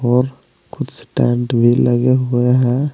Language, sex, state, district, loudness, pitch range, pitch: Hindi, male, Uttar Pradesh, Saharanpur, -16 LUFS, 120-125 Hz, 125 Hz